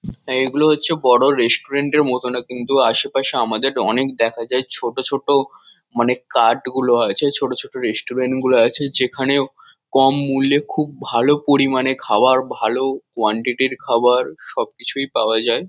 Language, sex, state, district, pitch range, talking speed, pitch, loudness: Bengali, male, West Bengal, Kolkata, 125-140 Hz, 145 wpm, 130 Hz, -17 LUFS